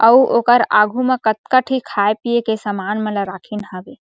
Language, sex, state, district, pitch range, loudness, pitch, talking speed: Chhattisgarhi, female, Chhattisgarh, Sarguja, 205-245 Hz, -16 LUFS, 220 Hz, 195 wpm